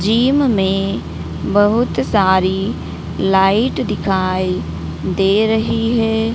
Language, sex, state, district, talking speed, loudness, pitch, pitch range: Hindi, female, Madhya Pradesh, Dhar, 85 wpm, -16 LUFS, 195 Hz, 190-220 Hz